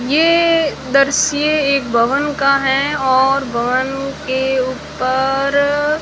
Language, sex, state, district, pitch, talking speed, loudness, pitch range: Hindi, female, Rajasthan, Jaisalmer, 275 Hz, 100 wpm, -15 LUFS, 260-290 Hz